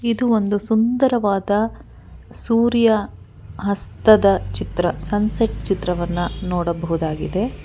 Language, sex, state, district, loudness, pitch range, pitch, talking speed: Kannada, female, Karnataka, Bangalore, -18 LUFS, 175-220 Hz, 200 Hz, 70 wpm